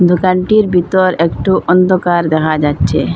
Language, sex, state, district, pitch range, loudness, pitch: Bengali, female, Assam, Hailakandi, 155-185 Hz, -12 LUFS, 175 Hz